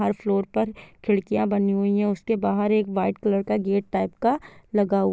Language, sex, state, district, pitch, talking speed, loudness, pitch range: Hindi, female, Bihar, Gopalganj, 205 Hz, 220 wpm, -24 LUFS, 195-215 Hz